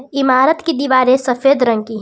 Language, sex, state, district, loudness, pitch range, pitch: Hindi, female, Jharkhand, Palamu, -14 LUFS, 250-275 Hz, 260 Hz